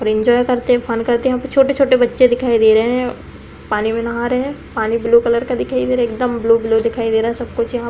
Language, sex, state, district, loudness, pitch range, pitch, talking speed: Hindi, female, Uttar Pradesh, Deoria, -16 LUFS, 230-250 Hz, 235 Hz, 290 wpm